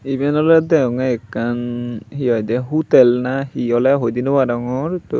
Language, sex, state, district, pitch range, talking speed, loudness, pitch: Chakma, male, Tripura, Unakoti, 120-140 Hz, 150 wpm, -17 LUFS, 125 Hz